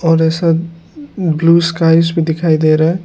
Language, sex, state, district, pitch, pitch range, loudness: Hindi, male, Arunachal Pradesh, Lower Dibang Valley, 165 Hz, 160-170 Hz, -13 LUFS